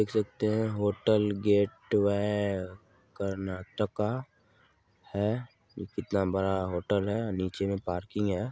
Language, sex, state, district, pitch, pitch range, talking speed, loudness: Maithili, male, Bihar, Supaul, 100 Hz, 95-105 Hz, 115 wpm, -30 LUFS